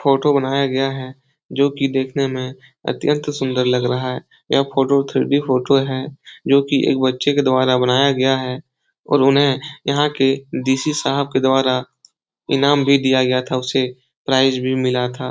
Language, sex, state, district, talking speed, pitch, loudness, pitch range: Hindi, male, Uttar Pradesh, Etah, 180 wpm, 135 Hz, -18 LUFS, 130-140 Hz